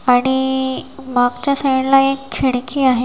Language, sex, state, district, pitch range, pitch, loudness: Marathi, female, Maharashtra, Washim, 250-270 Hz, 265 Hz, -16 LUFS